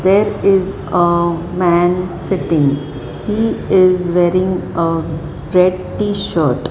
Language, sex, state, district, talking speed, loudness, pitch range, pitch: English, male, Maharashtra, Mumbai Suburban, 100 wpm, -15 LUFS, 165-185 Hz, 175 Hz